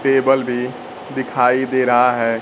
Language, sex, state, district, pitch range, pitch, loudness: Hindi, male, Bihar, Kaimur, 125-130 Hz, 125 Hz, -17 LUFS